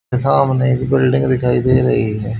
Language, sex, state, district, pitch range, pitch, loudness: Hindi, male, Haryana, Jhajjar, 125-130 Hz, 130 Hz, -15 LUFS